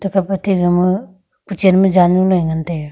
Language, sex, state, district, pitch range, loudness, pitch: Wancho, female, Arunachal Pradesh, Longding, 175-190 Hz, -15 LUFS, 185 Hz